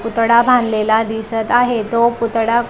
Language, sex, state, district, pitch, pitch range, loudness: Marathi, female, Maharashtra, Dhule, 230 Hz, 225-235 Hz, -15 LUFS